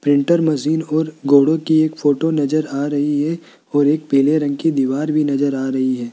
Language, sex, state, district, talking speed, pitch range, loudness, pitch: Hindi, male, Rajasthan, Jaipur, 215 wpm, 140-155 Hz, -17 LUFS, 145 Hz